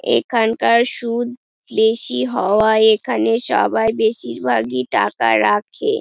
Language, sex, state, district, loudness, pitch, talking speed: Bengali, female, West Bengal, Dakshin Dinajpur, -17 LUFS, 220 Hz, 90 wpm